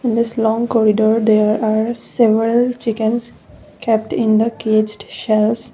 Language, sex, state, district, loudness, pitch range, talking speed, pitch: English, female, Assam, Kamrup Metropolitan, -16 LUFS, 215-230 Hz, 135 wpm, 225 Hz